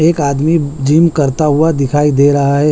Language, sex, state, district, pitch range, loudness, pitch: Hindi, male, Chhattisgarh, Raipur, 140-155 Hz, -12 LUFS, 145 Hz